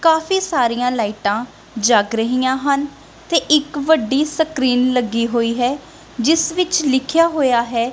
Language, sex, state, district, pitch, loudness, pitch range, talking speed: Punjabi, female, Punjab, Kapurthala, 260 Hz, -17 LUFS, 235-310 Hz, 135 wpm